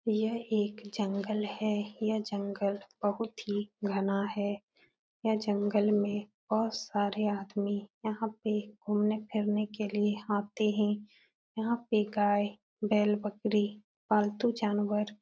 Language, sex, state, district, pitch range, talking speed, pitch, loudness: Hindi, female, Uttar Pradesh, Etah, 205-215 Hz, 120 wpm, 210 Hz, -32 LUFS